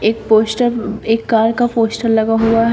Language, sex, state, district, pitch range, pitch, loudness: Hindi, female, Uttar Pradesh, Shamli, 220-230 Hz, 225 Hz, -15 LUFS